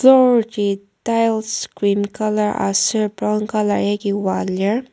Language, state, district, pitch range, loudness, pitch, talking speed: Ao, Nagaland, Kohima, 200-225 Hz, -18 LUFS, 210 Hz, 135 wpm